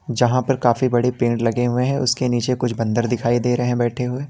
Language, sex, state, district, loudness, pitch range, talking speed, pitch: Hindi, male, Uttar Pradesh, Lalitpur, -19 LUFS, 120-125 Hz, 250 wpm, 120 Hz